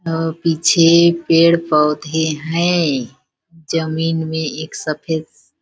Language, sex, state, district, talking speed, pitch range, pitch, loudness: Hindi, female, Chhattisgarh, Balrampur, 95 wpm, 155-165 Hz, 160 Hz, -16 LUFS